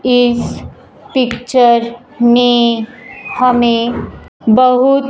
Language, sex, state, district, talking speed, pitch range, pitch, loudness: Hindi, male, Punjab, Fazilka, 60 wpm, 235-255 Hz, 245 Hz, -12 LUFS